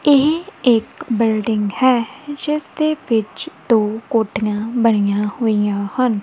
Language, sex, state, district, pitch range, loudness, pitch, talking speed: Punjabi, female, Punjab, Kapurthala, 215-280 Hz, -18 LUFS, 230 Hz, 105 wpm